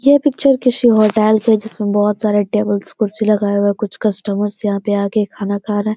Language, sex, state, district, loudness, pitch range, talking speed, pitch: Hindi, female, Bihar, Gopalganj, -16 LUFS, 205-220 Hz, 230 wpm, 210 Hz